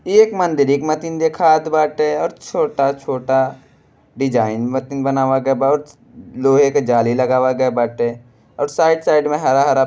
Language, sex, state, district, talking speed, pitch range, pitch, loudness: Bhojpuri, male, Uttar Pradesh, Deoria, 160 wpm, 130-155 Hz, 135 Hz, -17 LUFS